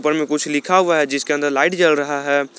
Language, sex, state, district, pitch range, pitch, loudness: Hindi, male, Jharkhand, Garhwa, 145-155 Hz, 150 Hz, -17 LUFS